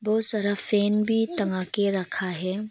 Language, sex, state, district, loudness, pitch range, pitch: Hindi, female, Arunachal Pradesh, Lower Dibang Valley, -24 LUFS, 190-215 Hz, 205 Hz